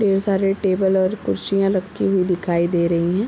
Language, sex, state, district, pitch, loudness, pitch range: Hindi, female, Bihar, Gopalganj, 190 Hz, -19 LUFS, 180-195 Hz